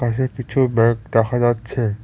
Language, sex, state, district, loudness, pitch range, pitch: Bengali, male, West Bengal, Cooch Behar, -19 LUFS, 115-125 Hz, 120 Hz